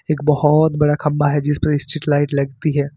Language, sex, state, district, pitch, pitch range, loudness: Hindi, male, Jharkhand, Ranchi, 150 Hz, 145-150 Hz, -17 LUFS